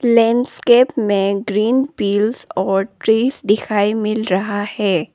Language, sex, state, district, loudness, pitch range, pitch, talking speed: Hindi, female, Arunachal Pradesh, Lower Dibang Valley, -17 LUFS, 200-235 Hz, 210 Hz, 115 wpm